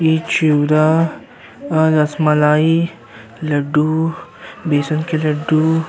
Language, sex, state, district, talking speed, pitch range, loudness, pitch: Hindi, male, Uttar Pradesh, Jyotiba Phule Nagar, 70 wpm, 150-160 Hz, -16 LUFS, 155 Hz